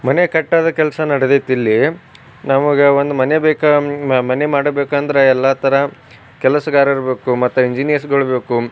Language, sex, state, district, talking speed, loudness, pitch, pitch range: Kannada, male, Karnataka, Bijapur, 135 wpm, -14 LUFS, 140 Hz, 130-145 Hz